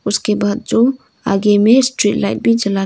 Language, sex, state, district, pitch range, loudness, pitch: Hindi, female, Arunachal Pradesh, Longding, 205-250 Hz, -14 LUFS, 210 Hz